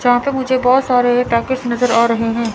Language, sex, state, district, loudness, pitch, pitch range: Hindi, female, Chandigarh, Chandigarh, -15 LUFS, 245 Hz, 235-255 Hz